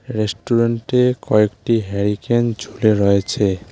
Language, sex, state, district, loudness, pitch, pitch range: Bengali, male, West Bengal, Alipurduar, -18 LUFS, 110 Hz, 105-120 Hz